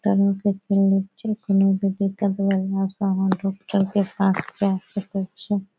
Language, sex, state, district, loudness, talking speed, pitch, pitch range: Maithili, female, Bihar, Saharsa, -23 LUFS, 165 wpm, 195 Hz, 195-200 Hz